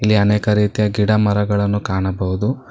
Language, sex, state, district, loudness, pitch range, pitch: Kannada, male, Karnataka, Bangalore, -17 LUFS, 100-105 Hz, 105 Hz